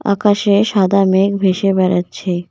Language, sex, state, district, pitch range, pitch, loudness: Bengali, female, West Bengal, Cooch Behar, 185-200 Hz, 195 Hz, -14 LUFS